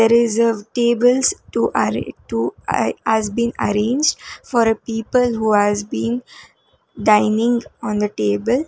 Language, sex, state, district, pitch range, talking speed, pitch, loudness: English, female, Karnataka, Bangalore, 210-240 Hz, 130 wpm, 230 Hz, -18 LUFS